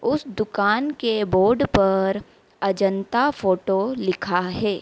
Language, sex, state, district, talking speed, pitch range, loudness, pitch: Hindi, female, Madhya Pradesh, Dhar, 110 wpm, 190-225 Hz, -21 LUFS, 200 Hz